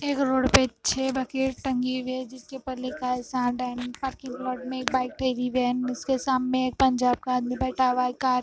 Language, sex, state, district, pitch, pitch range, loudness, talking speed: Hindi, female, Punjab, Fazilka, 255 Hz, 250-260 Hz, -26 LUFS, 215 wpm